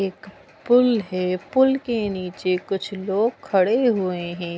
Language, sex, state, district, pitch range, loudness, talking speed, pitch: Hindi, female, Bihar, Gopalganj, 185-240 Hz, -22 LUFS, 145 wpm, 195 Hz